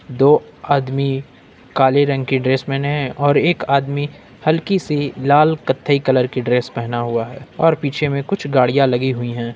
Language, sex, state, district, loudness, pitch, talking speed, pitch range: Hindi, male, Jharkhand, Ranchi, -17 LUFS, 135 Hz, 175 wpm, 130-145 Hz